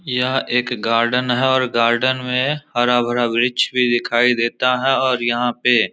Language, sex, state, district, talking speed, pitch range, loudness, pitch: Hindi, male, Bihar, Samastipur, 170 wpm, 120-130 Hz, -17 LUFS, 125 Hz